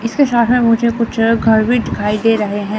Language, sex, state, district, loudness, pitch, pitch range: Hindi, female, Chandigarh, Chandigarh, -14 LUFS, 230 Hz, 220-235 Hz